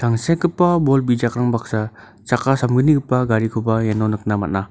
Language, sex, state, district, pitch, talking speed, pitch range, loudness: Garo, male, Meghalaya, North Garo Hills, 120 Hz, 130 wpm, 110-130 Hz, -18 LUFS